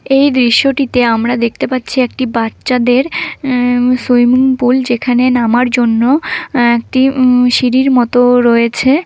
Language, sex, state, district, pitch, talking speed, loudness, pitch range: Bengali, female, West Bengal, Malda, 250 Hz, 125 wpm, -11 LUFS, 240-260 Hz